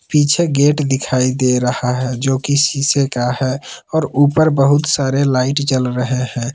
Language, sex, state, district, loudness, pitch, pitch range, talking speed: Hindi, male, Jharkhand, Palamu, -15 LUFS, 135 Hz, 130-145 Hz, 175 wpm